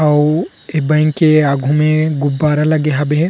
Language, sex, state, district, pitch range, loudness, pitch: Chhattisgarhi, male, Chhattisgarh, Rajnandgaon, 150-155 Hz, -14 LUFS, 150 Hz